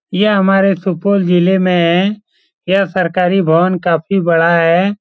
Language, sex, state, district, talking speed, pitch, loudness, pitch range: Hindi, male, Bihar, Supaul, 145 wpm, 185 Hz, -13 LUFS, 170-195 Hz